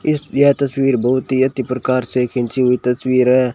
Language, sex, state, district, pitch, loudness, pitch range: Hindi, male, Rajasthan, Bikaner, 130 Hz, -16 LUFS, 125-135 Hz